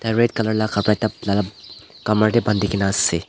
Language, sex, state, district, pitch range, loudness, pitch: Nagamese, male, Nagaland, Dimapur, 100-110 Hz, -20 LUFS, 105 Hz